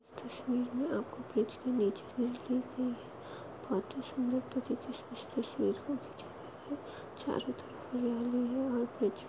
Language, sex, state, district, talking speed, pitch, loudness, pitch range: Hindi, female, Goa, North and South Goa, 65 wpm, 250 Hz, -36 LUFS, 240-260 Hz